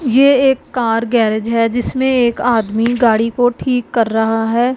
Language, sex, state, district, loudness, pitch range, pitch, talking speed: Hindi, female, Punjab, Pathankot, -14 LUFS, 225-250 Hz, 235 Hz, 190 wpm